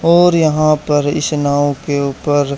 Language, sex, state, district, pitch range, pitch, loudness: Hindi, male, Haryana, Charkhi Dadri, 145-155 Hz, 145 Hz, -14 LUFS